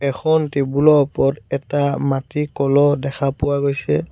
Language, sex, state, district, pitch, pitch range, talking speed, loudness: Assamese, male, Assam, Sonitpur, 140 Hz, 140-145 Hz, 145 wpm, -18 LUFS